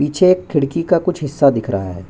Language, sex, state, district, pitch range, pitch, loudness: Hindi, male, Chhattisgarh, Bastar, 125-175 Hz, 145 Hz, -16 LUFS